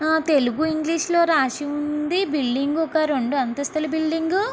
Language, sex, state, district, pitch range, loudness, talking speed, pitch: Telugu, female, Andhra Pradesh, Guntur, 285-320 Hz, -22 LUFS, 130 wpm, 310 Hz